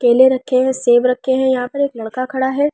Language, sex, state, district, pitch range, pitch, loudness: Hindi, female, Delhi, New Delhi, 250-265 Hz, 260 Hz, -16 LUFS